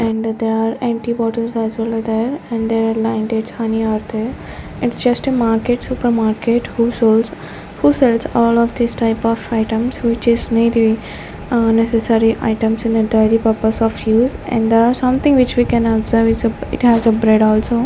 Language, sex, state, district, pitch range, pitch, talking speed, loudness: English, female, Punjab, Fazilka, 225-235 Hz, 230 Hz, 200 wpm, -16 LUFS